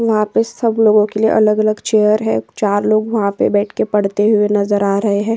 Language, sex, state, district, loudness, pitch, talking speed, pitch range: Hindi, female, Uttar Pradesh, Jyotiba Phule Nagar, -15 LUFS, 210 Hz, 235 wpm, 205-220 Hz